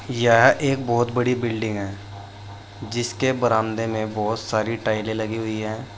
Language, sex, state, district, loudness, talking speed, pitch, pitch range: Hindi, male, Uttar Pradesh, Saharanpur, -22 LUFS, 150 wpm, 110 Hz, 110-120 Hz